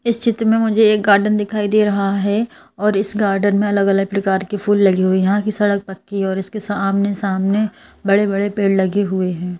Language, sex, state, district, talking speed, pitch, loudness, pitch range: Hindi, female, Madhya Pradesh, Bhopal, 210 wpm, 200 Hz, -17 LUFS, 195-210 Hz